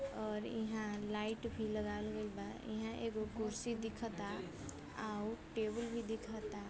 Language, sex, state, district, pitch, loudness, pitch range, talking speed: Bhojpuri, female, Uttar Pradesh, Varanasi, 220 Hz, -43 LUFS, 210-225 Hz, 135 wpm